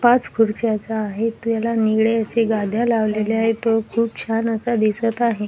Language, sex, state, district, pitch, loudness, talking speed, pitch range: Marathi, female, Maharashtra, Washim, 225 Hz, -20 LUFS, 165 wpm, 220-230 Hz